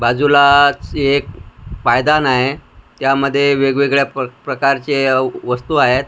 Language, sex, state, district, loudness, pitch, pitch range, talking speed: Marathi, male, Maharashtra, Washim, -14 LUFS, 135 Hz, 125-140 Hz, 90 wpm